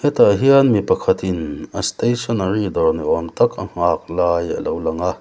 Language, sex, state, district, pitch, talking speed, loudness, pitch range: Mizo, male, Mizoram, Aizawl, 100 Hz, 175 wpm, -18 LUFS, 90-120 Hz